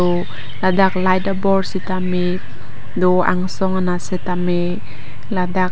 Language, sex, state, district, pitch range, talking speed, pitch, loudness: Karbi, female, Assam, Karbi Anglong, 175-185 Hz, 105 wpm, 180 Hz, -19 LUFS